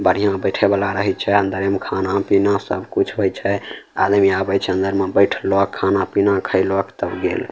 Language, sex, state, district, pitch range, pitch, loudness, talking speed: Maithili, male, Bihar, Samastipur, 95-100 Hz, 100 Hz, -18 LUFS, 175 wpm